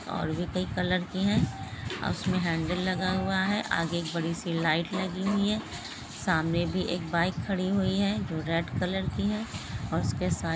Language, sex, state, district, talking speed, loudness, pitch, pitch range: Hindi, female, Bihar, Jamui, 200 wpm, -29 LUFS, 180 Hz, 165-190 Hz